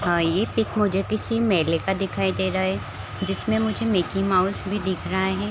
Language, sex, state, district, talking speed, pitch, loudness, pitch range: Hindi, female, Chhattisgarh, Raigarh, 205 wpm, 190 Hz, -23 LUFS, 165-210 Hz